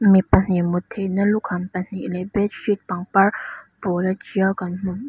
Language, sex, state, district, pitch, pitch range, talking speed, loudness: Mizo, female, Mizoram, Aizawl, 190 Hz, 180-200 Hz, 155 wpm, -21 LUFS